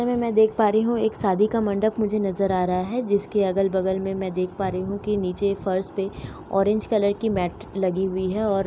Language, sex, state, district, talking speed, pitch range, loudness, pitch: Hindi, female, Uttar Pradesh, Budaun, 235 wpm, 190-215 Hz, -23 LUFS, 200 Hz